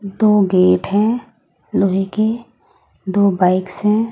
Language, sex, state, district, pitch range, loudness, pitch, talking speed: Hindi, female, Odisha, Nuapada, 190-215 Hz, -16 LUFS, 200 Hz, 115 wpm